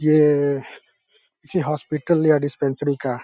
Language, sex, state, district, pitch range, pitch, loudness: Hindi, male, Uttar Pradesh, Deoria, 140-155 Hz, 145 Hz, -21 LUFS